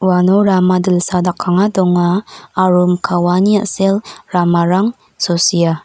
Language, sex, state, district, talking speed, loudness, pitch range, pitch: Garo, female, Meghalaya, North Garo Hills, 115 wpm, -14 LUFS, 175-195 Hz, 180 Hz